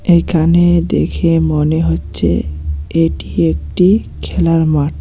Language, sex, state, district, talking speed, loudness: Bengali, male, West Bengal, Alipurduar, 95 wpm, -14 LUFS